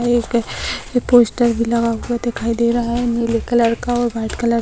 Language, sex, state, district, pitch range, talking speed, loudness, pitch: Hindi, female, Bihar, Purnia, 230-240 Hz, 210 wpm, -18 LUFS, 235 Hz